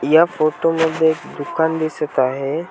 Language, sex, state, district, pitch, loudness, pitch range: Marathi, male, Maharashtra, Washim, 160 Hz, -18 LUFS, 150-165 Hz